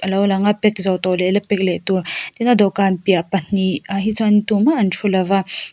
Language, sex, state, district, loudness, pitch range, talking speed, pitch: Mizo, female, Mizoram, Aizawl, -17 LUFS, 190-205 Hz, 240 wpm, 195 Hz